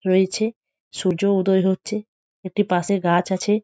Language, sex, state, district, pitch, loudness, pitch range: Bengali, female, West Bengal, Jhargram, 190 Hz, -21 LUFS, 185-210 Hz